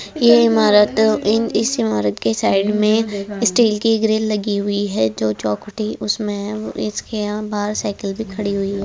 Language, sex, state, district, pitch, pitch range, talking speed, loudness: Hindi, female, Uttar Pradesh, Budaun, 210 Hz, 200-220 Hz, 175 wpm, -18 LUFS